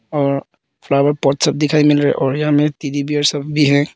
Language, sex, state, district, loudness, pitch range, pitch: Hindi, male, Arunachal Pradesh, Papum Pare, -16 LUFS, 140-150 Hz, 145 Hz